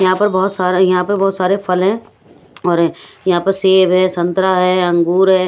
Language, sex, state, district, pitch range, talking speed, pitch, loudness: Hindi, female, Punjab, Pathankot, 180-190 Hz, 210 wpm, 185 Hz, -14 LUFS